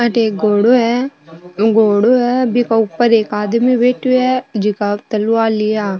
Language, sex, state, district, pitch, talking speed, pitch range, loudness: Marwari, female, Rajasthan, Nagaur, 225 Hz, 150 wpm, 210-245 Hz, -14 LUFS